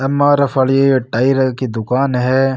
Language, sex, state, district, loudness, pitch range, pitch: Rajasthani, male, Rajasthan, Nagaur, -15 LUFS, 130-135 Hz, 130 Hz